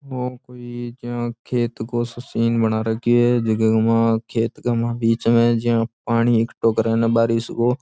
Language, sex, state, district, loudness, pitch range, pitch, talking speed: Rajasthani, male, Rajasthan, Churu, -20 LUFS, 115-120 Hz, 115 Hz, 190 wpm